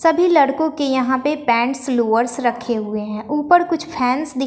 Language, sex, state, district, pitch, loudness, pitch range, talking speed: Hindi, female, Bihar, West Champaran, 265 Hz, -18 LUFS, 240-305 Hz, 185 wpm